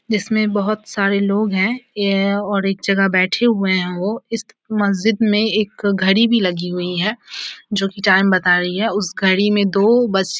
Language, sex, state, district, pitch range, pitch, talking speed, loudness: Hindi, female, Bihar, Samastipur, 190-215 Hz, 200 Hz, 200 wpm, -17 LUFS